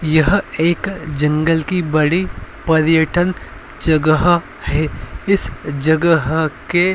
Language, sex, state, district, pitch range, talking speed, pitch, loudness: Hindi, male, Uttar Pradesh, Varanasi, 155-175 Hz, 105 wpm, 160 Hz, -16 LUFS